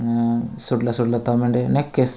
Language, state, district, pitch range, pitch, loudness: Gondi, Chhattisgarh, Sukma, 115-125 Hz, 120 Hz, -18 LUFS